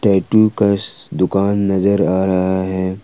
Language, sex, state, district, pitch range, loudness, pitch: Hindi, male, Jharkhand, Ranchi, 95-100 Hz, -16 LUFS, 95 Hz